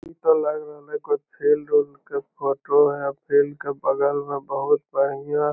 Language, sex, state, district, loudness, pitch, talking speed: Magahi, male, Bihar, Lakhisarai, -23 LUFS, 150 Hz, 195 wpm